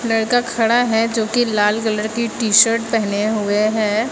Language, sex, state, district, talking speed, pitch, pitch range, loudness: Hindi, female, Uttar Pradesh, Lucknow, 190 wpm, 225 Hz, 215-230 Hz, -17 LUFS